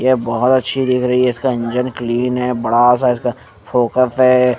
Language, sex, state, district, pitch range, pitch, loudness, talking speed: Hindi, male, Punjab, Fazilka, 120-125 Hz, 125 Hz, -15 LUFS, 210 wpm